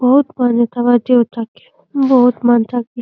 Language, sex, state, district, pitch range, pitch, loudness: Hindi, female, Uttar Pradesh, Deoria, 240-260 Hz, 245 Hz, -14 LUFS